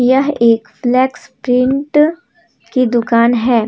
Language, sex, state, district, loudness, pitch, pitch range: Hindi, female, Jharkhand, Deoghar, -14 LUFS, 250 Hz, 235-265 Hz